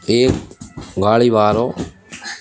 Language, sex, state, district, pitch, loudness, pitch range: Hindi, male, Madhya Pradesh, Bhopal, 115 Hz, -16 LUFS, 105-120 Hz